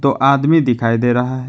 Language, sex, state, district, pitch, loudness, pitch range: Hindi, male, West Bengal, Alipurduar, 130 Hz, -15 LUFS, 120-140 Hz